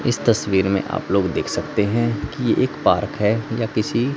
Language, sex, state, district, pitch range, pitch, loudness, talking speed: Hindi, male, Haryana, Jhajjar, 105-120 Hz, 115 Hz, -20 LUFS, 200 wpm